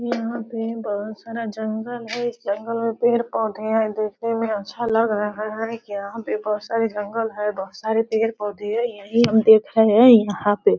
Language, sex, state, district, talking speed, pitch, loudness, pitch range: Hindi, female, Bihar, Sitamarhi, 190 wpm, 220 Hz, -21 LUFS, 210-230 Hz